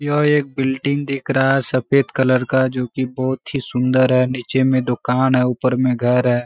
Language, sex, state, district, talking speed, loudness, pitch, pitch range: Hindi, male, Bihar, Kishanganj, 215 wpm, -18 LUFS, 130 Hz, 125-135 Hz